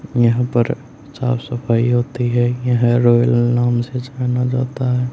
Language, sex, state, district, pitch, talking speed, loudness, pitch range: Hindi, male, Haryana, Rohtak, 125 Hz, 150 wpm, -17 LUFS, 120-125 Hz